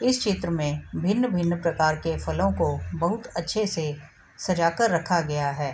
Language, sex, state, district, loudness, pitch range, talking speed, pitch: Hindi, female, Bihar, Sitamarhi, -25 LUFS, 150-185 Hz, 165 wpm, 170 Hz